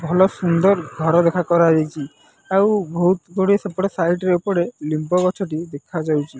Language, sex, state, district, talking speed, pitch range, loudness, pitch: Odia, male, Odisha, Nuapada, 170 wpm, 160-190 Hz, -19 LUFS, 175 Hz